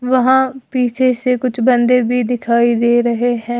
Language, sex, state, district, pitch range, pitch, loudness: Hindi, female, Uttar Pradesh, Lalitpur, 240-255 Hz, 245 Hz, -15 LUFS